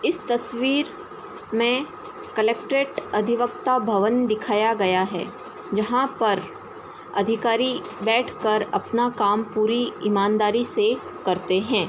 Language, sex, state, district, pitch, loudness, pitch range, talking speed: Hindi, female, Uttar Pradesh, Ghazipur, 235 Hz, -23 LUFS, 210-275 Hz, 105 wpm